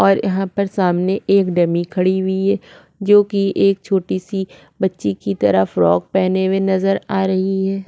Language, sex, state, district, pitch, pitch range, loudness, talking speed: Hindi, female, Maharashtra, Aurangabad, 190 Hz, 180-195 Hz, -17 LUFS, 175 wpm